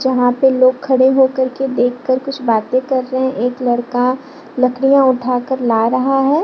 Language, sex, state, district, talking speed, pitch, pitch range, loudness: Hindi, female, Bihar, Lakhisarai, 175 wpm, 255 Hz, 245-265 Hz, -15 LUFS